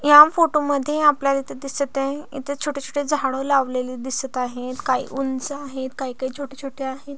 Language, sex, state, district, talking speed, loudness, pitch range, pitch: Marathi, female, Maharashtra, Aurangabad, 185 wpm, -22 LUFS, 265-285 Hz, 275 Hz